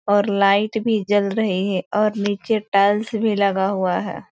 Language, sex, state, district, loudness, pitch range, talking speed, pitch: Hindi, female, Bihar, East Champaran, -19 LUFS, 195-215 Hz, 180 wpm, 205 Hz